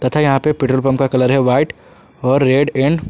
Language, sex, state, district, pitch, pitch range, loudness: Hindi, male, Jharkhand, Ranchi, 135 Hz, 130-140 Hz, -15 LUFS